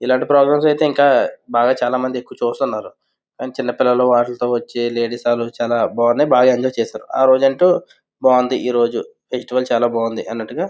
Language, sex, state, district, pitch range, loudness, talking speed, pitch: Telugu, male, Andhra Pradesh, Visakhapatnam, 120-130 Hz, -17 LUFS, 175 wpm, 125 Hz